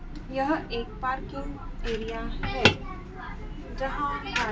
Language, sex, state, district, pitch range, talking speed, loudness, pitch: Hindi, female, Madhya Pradesh, Dhar, 230-270 Hz, 95 wpm, -29 LUFS, 260 Hz